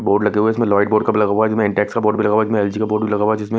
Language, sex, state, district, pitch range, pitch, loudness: Hindi, male, Punjab, Kapurthala, 105-110 Hz, 105 Hz, -17 LUFS